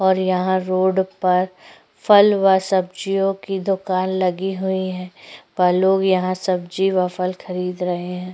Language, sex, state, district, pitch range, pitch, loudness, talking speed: Hindi, female, Maharashtra, Chandrapur, 180-190 Hz, 185 Hz, -19 LUFS, 150 wpm